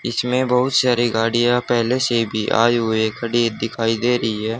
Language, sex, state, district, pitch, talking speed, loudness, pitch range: Hindi, male, Haryana, Charkhi Dadri, 120 Hz, 180 wpm, -18 LUFS, 115-125 Hz